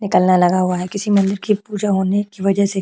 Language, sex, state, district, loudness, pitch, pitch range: Hindi, female, Chhattisgarh, Korba, -17 LUFS, 195 Hz, 190-205 Hz